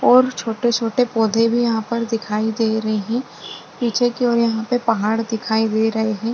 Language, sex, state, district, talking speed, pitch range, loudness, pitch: Hindi, female, Maharashtra, Aurangabad, 180 wpm, 220-240 Hz, -19 LUFS, 225 Hz